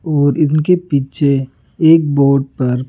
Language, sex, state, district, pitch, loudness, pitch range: Hindi, male, Rajasthan, Jaipur, 140 Hz, -14 LUFS, 135-155 Hz